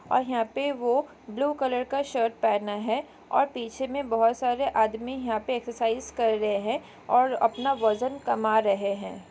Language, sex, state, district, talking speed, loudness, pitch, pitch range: Hindi, female, Chhattisgarh, Kabirdham, 180 wpm, -27 LUFS, 235 Hz, 220-265 Hz